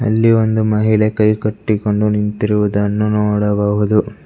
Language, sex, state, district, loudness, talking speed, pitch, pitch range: Kannada, male, Karnataka, Bangalore, -15 LUFS, 85 wpm, 105 Hz, 105-110 Hz